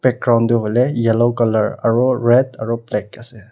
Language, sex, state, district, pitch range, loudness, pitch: Nagamese, male, Nagaland, Kohima, 115-125 Hz, -16 LUFS, 115 Hz